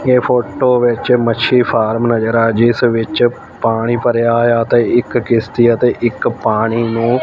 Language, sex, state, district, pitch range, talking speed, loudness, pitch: Punjabi, male, Punjab, Fazilka, 115-120 Hz, 165 wpm, -14 LUFS, 120 Hz